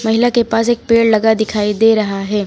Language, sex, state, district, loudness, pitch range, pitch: Hindi, female, Uttar Pradesh, Lucknow, -14 LUFS, 210-230 Hz, 220 Hz